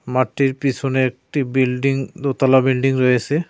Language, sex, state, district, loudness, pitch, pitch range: Bengali, male, West Bengal, Cooch Behar, -18 LUFS, 135 Hz, 130-135 Hz